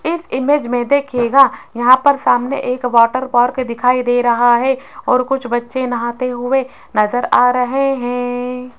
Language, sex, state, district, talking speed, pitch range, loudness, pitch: Hindi, female, Rajasthan, Jaipur, 165 wpm, 245-265 Hz, -15 LUFS, 250 Hz